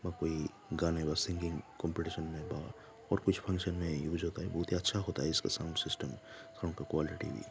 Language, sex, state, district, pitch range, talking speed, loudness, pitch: Hindi, male, Jharkhand, Jamtara, 80-95 Hz, 175 wpm, -37 LUFS, 85 Hz